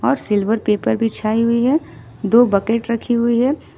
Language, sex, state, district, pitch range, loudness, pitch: Hindi, female, Jharkhand, Ranchi, 215-240 Hz, -17 LUFS, 230 Hz